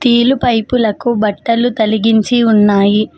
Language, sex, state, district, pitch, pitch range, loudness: Telugu, female, Telangana, Mahabubabad, 225 Hz, 215-240 Hz, -12 LUFS